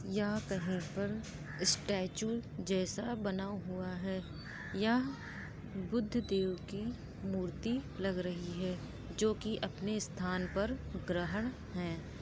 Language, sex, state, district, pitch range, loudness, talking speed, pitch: Hindi, female, Uttar Pradesh, Budaun, 180-210 Hz, -38 LUFS, 105 wpm, 195 Hz